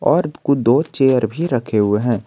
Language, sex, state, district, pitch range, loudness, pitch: Hindi, male, Jharkhand, Garhwa, 115-150 Hz, -17 LUFS, 130 Hz